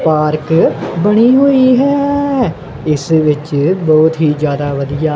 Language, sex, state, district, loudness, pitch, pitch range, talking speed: Punjabi, male, Punjab, Kapurthala, -12 LUFS, 155 Hz, 150-245 Hz, 115 wpm